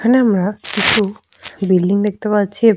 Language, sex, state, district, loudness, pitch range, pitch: Bengali, female, Jharkhand, Sahebganj, -16 LUFS, 195-220 Hz, 210 Hz